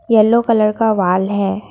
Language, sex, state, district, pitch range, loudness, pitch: Hindi, female, Assam, Kamrup Metropolitan, 195-225 Hz, -14 LUFS, 215 Hz